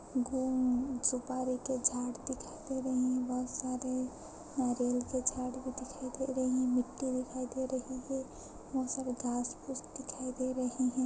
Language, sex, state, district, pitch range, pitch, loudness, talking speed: Hindi, female, Chhattisgarh, Balrampur, 255-260 Hz, 255 Hz, -35 LUFS, 155 wpm